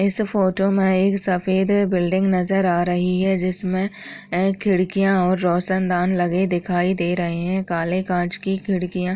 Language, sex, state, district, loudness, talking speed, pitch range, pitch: Hindi, female, Uttar Pradesh, Deoria, -20 LUFS, 165 wpm, 180-195 Hz, 185 Hz